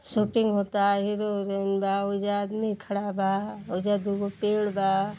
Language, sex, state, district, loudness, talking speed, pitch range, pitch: Bhojpuri, female, Uttar Pradesh, Gorakhpur, -27 LUFS, 150 wpm, 200-210 Hz, 200 Hz